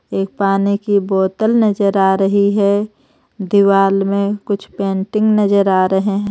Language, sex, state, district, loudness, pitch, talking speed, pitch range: Hindi, female, Jharkhand, Ranchi, -15 LUFS, 200 Hz, 150 wpm, 195-205 Hz